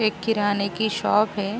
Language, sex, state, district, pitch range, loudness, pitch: Hindi, female, Uttar Pradesh, Jalaun, 200-220 Hz, -23 LUFS, 210 Hz